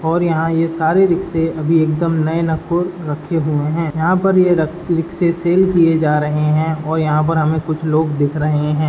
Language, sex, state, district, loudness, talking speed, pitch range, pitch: Hindi, male, Uttar Pradesh, Budaun, -16 LUFS, 210 wpm, 155-170 Hz, 160 Hz